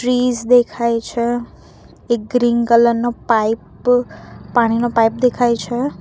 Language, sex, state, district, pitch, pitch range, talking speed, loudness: Gujarati, female, Gujarat, Valsad, 235 Hz, 235-245 Hz, 120 wpm, -16 LUFS